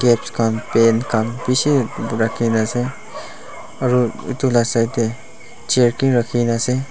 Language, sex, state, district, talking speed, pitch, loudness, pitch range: Nagamese, male, Nagaland, Dimapur, 140 wpm, 120 Hz, -18 LUFS, 115-125 Hz